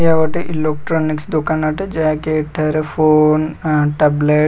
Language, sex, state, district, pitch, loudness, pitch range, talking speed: Odia, male, Odisha, Khordha, 155 Hz, -16 LUFS, 155-160 Hz, 145 wpm